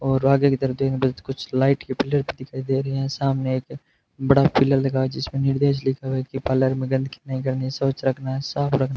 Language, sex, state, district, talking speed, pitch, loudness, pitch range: Hindi, male, Rajasthan, Bikaner, 240 wpm, 135 Hz, -22 LUFS, 130-135 Hz